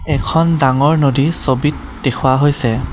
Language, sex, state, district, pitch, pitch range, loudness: Assamese, male, Assam, Kamrup Metropolitan, 140 Hz, 130-150 Hz, -14 LUFS